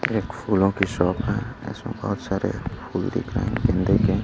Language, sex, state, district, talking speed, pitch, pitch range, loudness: Hindi, male, Chhattisgarh, Raipur, 200 wpm, 100 Hz, 95-115 Hz, -24 LUFS